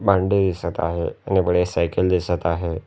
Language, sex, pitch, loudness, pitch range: Marathi, male, 90 Hz, -21 LUFS, 85-95 Hz